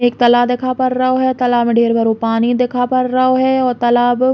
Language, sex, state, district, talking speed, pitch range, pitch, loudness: Bundeli, female, Uttar Pradesh, Hamirpur, 260 wpm, 240-255 Hz, 245 Hz, -14 LUFS